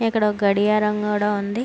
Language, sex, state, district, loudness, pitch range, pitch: Telugu, female, Andhra Pradesh, Srikakulam, -20 LUFS, 205-215 Hz, 210 Hz